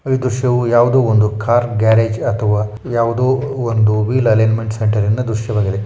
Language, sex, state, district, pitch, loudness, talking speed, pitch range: Kannada, male, Karnataka, Shimoga, 115 Hz, -15 LUFS, 145 wpm, 110-120 Hz